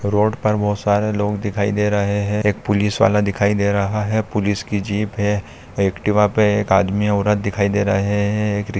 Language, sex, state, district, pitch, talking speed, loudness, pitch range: Hindi, male, Andhra Pradesh, Chittoor, 105 Hz, 185 wpm, -18 LUFS, 100-105 Hz